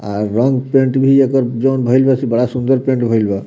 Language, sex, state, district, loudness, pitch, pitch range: Bhojpuri, male, Bihar, Muzaffarpur, -14 LUFS, 130 Hz, 115-135 Hz